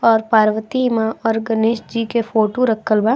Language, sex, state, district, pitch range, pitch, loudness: Bhojpuri, female, Bihar, East Champaran, 220-230 Hz, 225 Hz, -17 LUFS